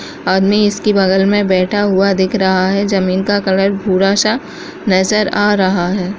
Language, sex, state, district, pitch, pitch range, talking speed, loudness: Kumaoni, female, Uttarakhand, Uttarkashi, 195 Hz, 190-205 Hz, 165 wpm, -13 LUFS